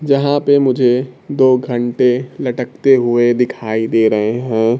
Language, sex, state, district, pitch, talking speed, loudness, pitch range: Hindi, male, Bihar, Kaimur, 125 Hz, 135 wpm, -14 LUFS, 120-130 Hz